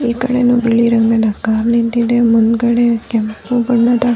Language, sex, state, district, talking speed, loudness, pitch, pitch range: Kannada, female, Karnataka, Dharwad, 145 wpm, -13 LUFS, 235 Hz, 225-240 Hz